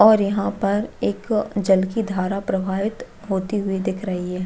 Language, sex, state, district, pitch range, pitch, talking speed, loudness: Hindi, female, Chhattisgarh, Jashpur, 190-210 Hz, 200 Hz, 175 wpm, -22 LUFS